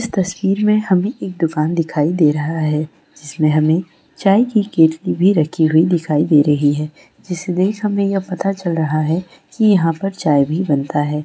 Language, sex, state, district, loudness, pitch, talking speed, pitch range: Hindi, female, West Bengal, Dakshin Dinajpur, -16 LUFS, 165 Hz, 195 wpm, 155-195 Hz